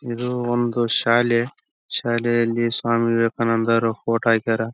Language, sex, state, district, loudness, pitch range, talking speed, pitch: Kannada, male, Karnataka, Raichur, -20 LUFS, 115-120 Hz, 175 wpm, 115 Hz